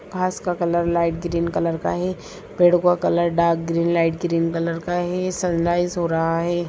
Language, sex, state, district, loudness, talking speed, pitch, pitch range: Hindi, female, Bihar, Sitamarhi, -21 LUFS, 195 wpm, 170 Hz, 165-175 Hz